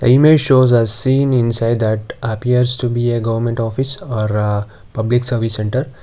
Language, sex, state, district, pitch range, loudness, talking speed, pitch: English, male, Karnataka, Bangalore, 110-130 Hz, -16 LUFS, 160 wpm, 120 Hz